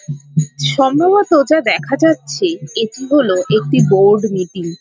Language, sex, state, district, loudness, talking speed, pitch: Bengali, female, West Bengal, Kolkata, -14 LUFS, 125 wpm, 195 Hz